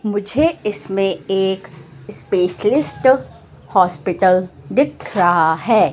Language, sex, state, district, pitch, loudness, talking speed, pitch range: Hindi, female, Madhya Pradesh, Katni, 195 Hz, -17 LUFS, 80 wpm, 175-220 Hz